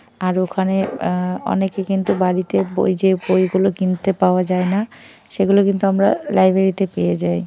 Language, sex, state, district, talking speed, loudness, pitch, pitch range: Bengali, female, West Bengal, North 24 Parganas, 170 wpm, -18 LUFS, 185 Hz, 185-195 Hz